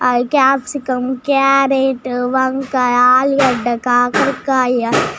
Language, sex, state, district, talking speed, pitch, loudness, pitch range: Telugu, female, Telangana, Nalgonda, 80 wpm, 260 Hz, -14 LUFS, 245-270 Hz